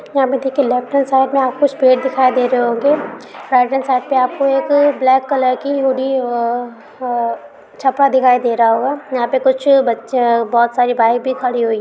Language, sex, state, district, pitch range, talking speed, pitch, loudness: Hindi, female, Bihar, Kishanganj, 245-270 Hz, 195 wpm, 260 Hz, -15 LUFS